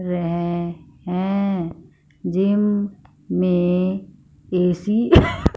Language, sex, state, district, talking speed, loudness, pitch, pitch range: Hindi, female, Punjab, Fazilka, 65 wpm, -20 LUFS, 180 Hz, 175-195 Hz